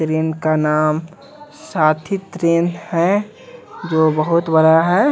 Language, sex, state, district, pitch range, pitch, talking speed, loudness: Hindi, male, Bihar, West Champaran, 160-200 Hz, 170 Hz, 105 wpm, -17 LUFS